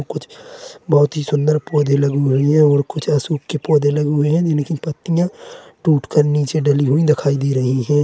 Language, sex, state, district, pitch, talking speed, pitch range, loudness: Hindi, male, Chhattisgarh, Korba, 150 Hz, 195 wpm, 145-160 Hz, -17 LUFS